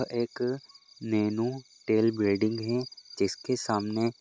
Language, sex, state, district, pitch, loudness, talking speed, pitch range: Hindi, male, Goa, North and South Goa, 115 Hz, -29 LUFS, 85 wpm, 110-130 Hz